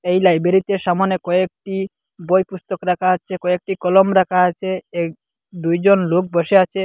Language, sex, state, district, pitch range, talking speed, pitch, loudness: Bengali, male, Assam, Hailakandi, 180-190 Hz, 150 wpm, 185 Hz, -18 LUFS